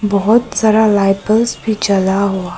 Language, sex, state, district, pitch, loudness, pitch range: Hindi, male, Arunachal Pradesh, Papum Pare, 205 Hz, -13 LUFS, 195-220 Hz